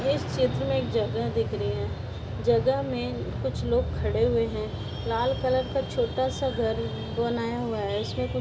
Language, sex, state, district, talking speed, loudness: Hindi, female, Uttar Pradesh, Ghazipur, 190 wpm, -28 LUFS